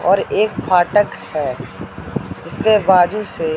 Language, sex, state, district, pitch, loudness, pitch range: Hindi, male, Madhya Pradesh, Katni, 205 Hz, -17 LUFS, 180-215 Hz